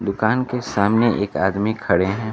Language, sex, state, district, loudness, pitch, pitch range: Hindi, male, Bihar, Kaimur, -20 LUFS, 105 Hz, 100-115 Hz